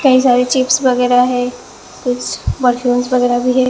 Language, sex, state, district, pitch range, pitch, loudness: Hindi, female, Assam, Hailakandi, 245-255 Hz, 250 Hz, -14 LUFS